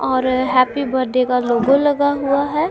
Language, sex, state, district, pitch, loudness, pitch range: Hindi, female, Punjab, Kapurthala, 260 Hz, -17 LUFS, 255-285 Hz